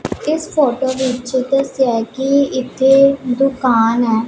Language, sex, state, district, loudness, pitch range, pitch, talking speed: Punjabi, female, Punjab, Pathankot, -15 LUFS, 245-275 Hz, 260 Hz, 125 wpm